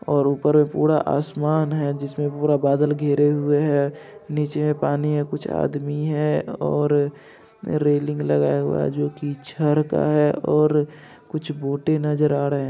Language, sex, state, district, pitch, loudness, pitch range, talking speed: Hindi, male, Bihar, Lakhisarai, 150 Hz, -21 LUFS, 145-150 Hz, 170 wpm